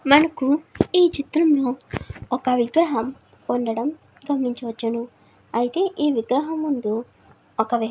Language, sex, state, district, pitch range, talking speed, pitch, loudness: Telugu, female, Andhra Pradesh, Srikakulam, 235-300 Hz, 115 wpm, 260 Hz, -22 LUFS